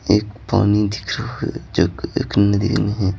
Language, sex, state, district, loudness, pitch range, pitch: Hindi, male, Bihar, Patna, -19 LUFS, 100-105 Hz, 105 Hz